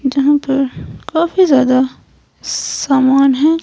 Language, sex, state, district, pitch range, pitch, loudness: Hindi, female, Himachal Pradesh, Shimla, 270-310 Hz, 275 Hz, -14 LUFS